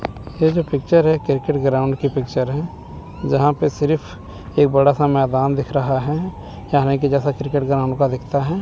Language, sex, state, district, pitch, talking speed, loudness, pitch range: Hindi, male, Chandigarh, Chandigarh, 140 Hz, 190 wpm, -18 LUFS, 135-150 Hz